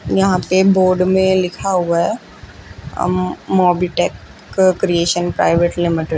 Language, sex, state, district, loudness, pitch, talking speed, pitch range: Hindi, female, Chandigarh, Chandigarh, -16 LUFS, 180 Hz, 125 wpm, 170-185 Hz